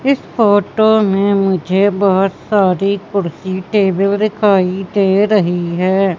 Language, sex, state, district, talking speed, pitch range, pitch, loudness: Hindi, female, Madhya Pradesh, Katni, 115 wpm, 190-205 Hz, 195 Hz, -14 LUFS